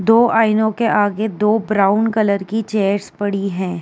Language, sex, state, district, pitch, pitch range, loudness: Hindi, female, Uttar Pradesh, Jyotiba Phule Nagar, 210 Hz, 200-220 Hz, -17 LUFS